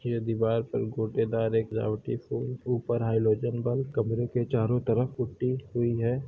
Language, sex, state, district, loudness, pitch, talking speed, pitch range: Hindi, male, Uttar Pradesh, Hamirpur, -29 LUFS, 120 Hz, 160 wpm, 115-125 Hz